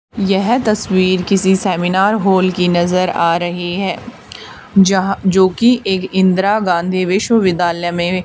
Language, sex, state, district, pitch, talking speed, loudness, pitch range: Hindi, female, Haryana, Charkhi Dadri, 185 Hz, 130 wpm, -14 LUFS, 180-195 Hz